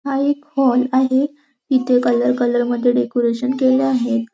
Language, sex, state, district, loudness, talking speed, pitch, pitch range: Marathi, female, Maharashtra, Nagpur, -17 LUFS, 150 wpm, 255 Hz, 245-270 Hz